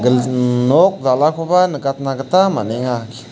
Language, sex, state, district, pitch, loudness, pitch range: Garo, male, Meghalaya, South Garo Hills, 135 Hz, -16 LUFS, 125-165 Hz